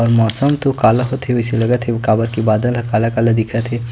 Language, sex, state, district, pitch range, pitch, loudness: Chhattisgarhi, male, Chhattisgarh, Sukma, 115-125 Hz, 115 Hz, -16 LUFS